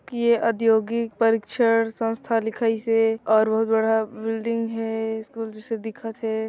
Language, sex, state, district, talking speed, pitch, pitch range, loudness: Chhattisgarhi, female, Chhattisgarh, Sarguja, 140 wpm, 225 Hz, 220-230 Hz, -23 LUFS